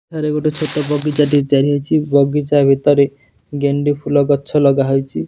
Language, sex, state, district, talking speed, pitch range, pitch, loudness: Odia, male, Odisha, Nuapada, 150 wpm, 140-150 Hz, 145 Hz, -15 LUFS